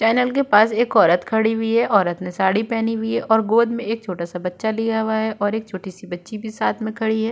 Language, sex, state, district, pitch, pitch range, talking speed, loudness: Hindi, female, Uttar Pradesh, Budaun, 220 Hz, 195-225 Hz, 280 wpm, -20 LUFS